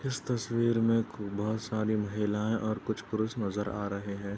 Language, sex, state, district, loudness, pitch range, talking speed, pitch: Hindi, male, Uttar Pradesh, Etah, -31 LUFS, 105-115 Hz, 180 wpm, 110 Hz